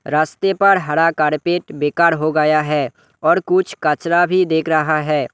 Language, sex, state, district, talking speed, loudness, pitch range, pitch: Hindi, male, West Bengal, Alipurduar, 170 wpm, -16 LUFS, 150-175 Hz, 155 Hz